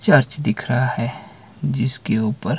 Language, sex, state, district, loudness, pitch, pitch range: Hindi, male, Himachal Pradesh, Shimla, -21 LUFS, 130 Hz, 115-150 Hz